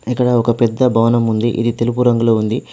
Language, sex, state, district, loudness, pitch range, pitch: Telugu, male, Telangana, Adilabad, -15 LUFS, 115-120 Hz, 120 Hz